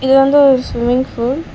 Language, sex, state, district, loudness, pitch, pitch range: Tamil, female, Tamil Nadu, Chennai, -13 LUFS, 265 Hz, 250-270 Hz